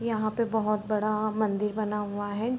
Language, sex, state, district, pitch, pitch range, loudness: Hindi, female, Bihar, Muzaffarpur, 215 Hz, 210-220 Hz, -28 LUFS